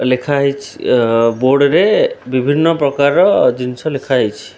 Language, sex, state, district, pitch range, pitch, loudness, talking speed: Odia, male, Odisha, Khordha, 125-145 Hz, 140 Hz, -14 LUFS, 130 wpm